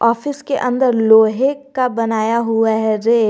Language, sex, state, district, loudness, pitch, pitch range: Hindi, male, Jharkhand, Garhwa, -16 LUFS, 230 Hz, 220-260 Hz